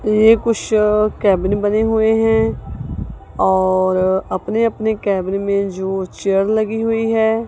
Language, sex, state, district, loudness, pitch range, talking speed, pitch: Hindi, female, Punjab, Kapurthala, -16 LUFS, 195-225 Hz, 135 wpm, 215 Hz